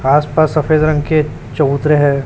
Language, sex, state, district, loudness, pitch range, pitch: Hindi, male, Chhattisgarh, Raipur, -14 LUFS, 145-155 Hz, 150 Hz